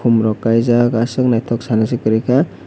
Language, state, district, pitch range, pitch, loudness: Kokborok, Tripura, West Tripura, 115-120 Hz, 115 Hz, -15 LUFS